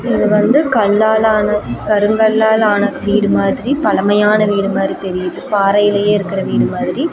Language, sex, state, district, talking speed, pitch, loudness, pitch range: Tamil, female, Tamil Nadu, Namakkal, 120 wpm, 210 Hz, -14 LUFS, 195-220 Hz